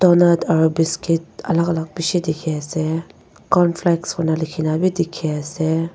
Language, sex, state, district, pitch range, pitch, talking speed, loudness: Nagamese, female, Nagaland, Dimapur, 160-170 Hz, 165 Hz, 130 wpm, -19 LUFS